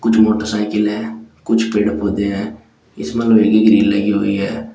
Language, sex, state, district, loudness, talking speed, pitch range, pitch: Hindi, male, Uttar Pradesh, Shamli, -15 LUFS, 175 wpm, 105-110 Hz, 105 Hz